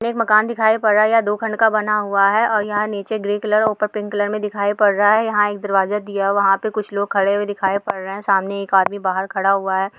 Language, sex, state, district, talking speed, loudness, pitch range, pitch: Hindi, female, Uttar Pradesh, Budaun, 295 wpm, -18 LUFS, 200-215 Hz, 205 Hz